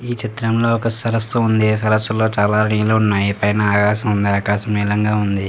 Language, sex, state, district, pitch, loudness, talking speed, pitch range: Telugu, male, Telangana, Karimnagar, 105 Hz, -17 LUFS, 175 wpm, 105-110 Hz